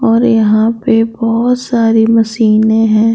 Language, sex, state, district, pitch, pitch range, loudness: Hindi, female, Bihar, Patna, 225 Hz, 220-230 Hz, -11 LUFS